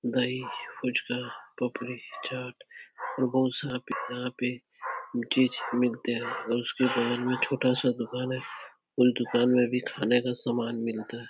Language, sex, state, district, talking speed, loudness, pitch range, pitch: Hindi, male, Uttar Pradesh, Etah, 155 wpm, -29 LUFS, 120-125 Hz, 125 Hz